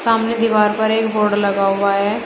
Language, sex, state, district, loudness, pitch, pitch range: Hindi, female, Uttar Pradesh, Shamli, -16 LUFS, 210 Hz, 200-225 Hz